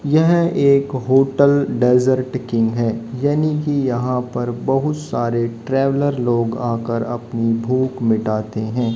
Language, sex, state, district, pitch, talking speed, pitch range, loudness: Hindi, male, Haryana, Jhajjar, 125 Hz, 125 wpm, 115-140 Hz, -18 LUFS